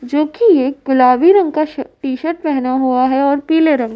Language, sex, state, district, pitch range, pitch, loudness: Hindi, female, Uttar Pradesh, Varanasi, 260-310 Hz, 280 Hz, -14 LUFS